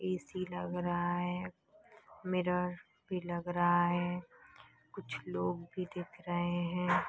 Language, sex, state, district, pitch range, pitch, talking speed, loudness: Hindi, female, Maharashtra, Pune, 175-180 Hz, 180 Hz, 125 wpm, -36 LUFS